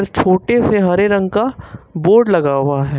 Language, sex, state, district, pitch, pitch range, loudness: Hindi, male, Uttar Pradesh, Lucknow, 195 Hz, 145-215 Hz, -14 LUFS